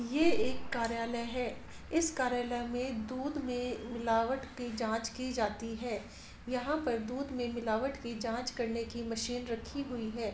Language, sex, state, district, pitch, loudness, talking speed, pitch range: Hindi, female, Bihar, Saran, 240 Hz, -35 LUFS, 160 wpm, 230-255 Hz